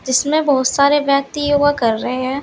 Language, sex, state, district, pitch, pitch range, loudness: Hindi, female, Uttar Pradesh, Saharanpur, 280 Hz, 260-290 Hz, -16 LUFS